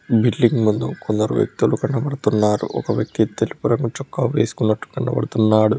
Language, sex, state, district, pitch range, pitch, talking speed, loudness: Telugu, male, Telangana, Hyderabad, 110-125 Hz, 115 Hz, 125 wpm, -20 LUFS